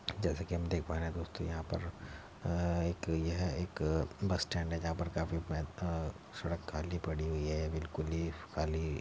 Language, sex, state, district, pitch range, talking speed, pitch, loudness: Hindi, male, Uttar Pradesh, Muzaffarnagar, 80-85 Hz, 200 wpm, 85 Hz, -38 LUFS